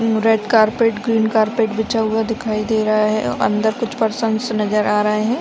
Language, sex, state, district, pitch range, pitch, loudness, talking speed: Hindi, female, Bihar, Saran, 215-225 Hz, 220 Hz, -17 LUFS, 200 wpm